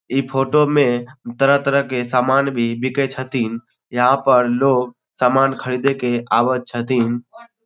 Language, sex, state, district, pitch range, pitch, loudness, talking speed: Maithili, male, Bihar, Supaul, 120-135 Hz, 130 Hz, -18 LUFS, 135 wpm